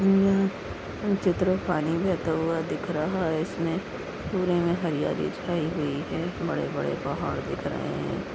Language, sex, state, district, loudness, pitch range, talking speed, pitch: Hindi, female, Maharashtra, Pune, -28 LUFS, 165-190 Hz, 145 wpm, 175 Hz